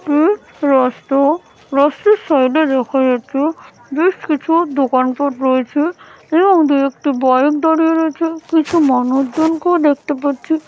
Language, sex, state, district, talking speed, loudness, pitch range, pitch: Bengali, female, West Bengal, Paschim Medinipur, 130 wpm, -15 LUFS, 270-320 Hz, 295 Hz